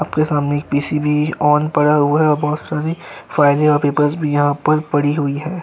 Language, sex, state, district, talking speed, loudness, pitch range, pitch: Hindi, male, Uttar Pradesh, Jyotiba Phule Nagar, 215 wpm, -16 LUFS, 145-150 Hz, 150 Hz